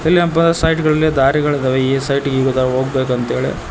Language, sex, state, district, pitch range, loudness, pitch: Kannada, male, Karnataka, Koppal, 130-160 Hz, -15 LUFS, 140 Hz